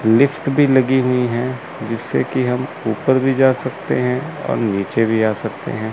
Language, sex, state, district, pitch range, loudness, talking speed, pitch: Hindi, male, Chandigarh, Chandigarh, 110-130 Hz, -18 LUFS, 190 wpm, 125 Hz